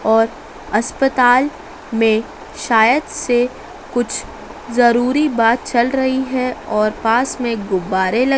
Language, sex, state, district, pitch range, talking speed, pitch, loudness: Hindi, female, Madhya Pradesh, Dhar, 225-260 Hz, 115 wpm, 240 Hz, -17 LUFS